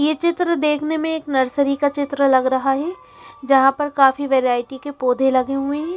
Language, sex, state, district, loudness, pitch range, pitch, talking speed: Hindi, female, Chandigarh, Chandigarh, -18 LUFS, 265-295 Hz, 275 Hz, 200 wpm